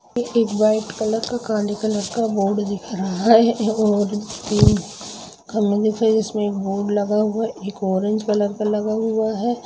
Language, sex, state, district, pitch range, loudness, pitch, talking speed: Hindi, female, Jharkhand, Jamtara, 205-220 Hz, -20 LUFS, 215 Hz, 160 wpm